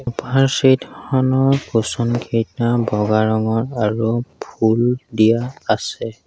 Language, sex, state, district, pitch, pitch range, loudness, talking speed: Assamese, male, Assam, Sonitpur, 120 Hz, 110-130 Hz, -18 LUFS, 105 wpm